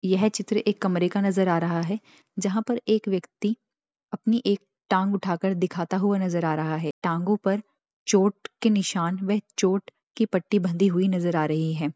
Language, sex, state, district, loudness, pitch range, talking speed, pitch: Hindi, female, Bihar, Bhagalpur, -25 LUFS, 175-205 Hz, 195 wpm, 195 Hz